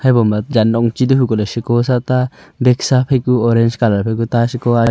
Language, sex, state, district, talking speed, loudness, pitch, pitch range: Wancho, male, Arunachal Pradesh, Longding, 245 wpm, -15 LUFS, 120 Hz, 115-125 Hz